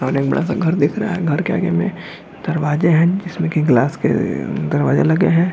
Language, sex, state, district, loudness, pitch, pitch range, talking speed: Hindi, male, Jharkhand, Jamtara, -17 LUFS, 170 Hz, 155-180 Hz, 215 wpm